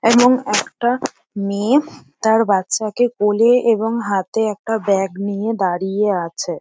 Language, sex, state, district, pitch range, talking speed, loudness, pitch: Bengali, female, West Bengal, Dakshin Dinajpur, 200-230 Hz, 120 wpm, -18 LUFS, 215 Hz